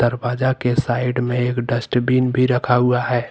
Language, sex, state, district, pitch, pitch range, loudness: Hindi, male, Jharkhand, Deoghar, 125 Hz, 120-125 Hz, -19 LUFS